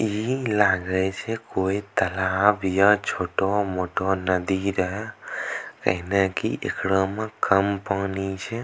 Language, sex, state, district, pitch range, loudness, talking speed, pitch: Angika, male, Bihar, Bhagalpur, 95-105 Hz, -24 LUFS, 110 wpm, 95 Hz